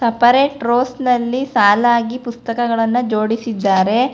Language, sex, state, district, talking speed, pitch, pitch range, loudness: Kannada, female, Karnataka, Bangalore, 85 wpm, 240 Hz, 225-245 Hz, -16 LUFS